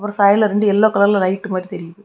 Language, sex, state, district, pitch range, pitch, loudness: Tamil, female, Tamil Nadu, Kanyakumari, 190-210 Hz, 200 Hz, -16 LUFS